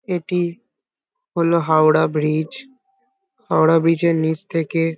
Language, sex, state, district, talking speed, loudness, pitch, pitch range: Bengali, male, West Bengal, Kolkata, 120 wpm, -18 LUFS, 170 Hz, 160-235 Hz